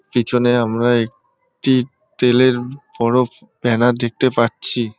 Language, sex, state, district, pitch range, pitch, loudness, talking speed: Bengali, male, West Bengal, North 24 Parganas, 120-130 Hz, 120 Hz, -17 LUFS, 110 wpm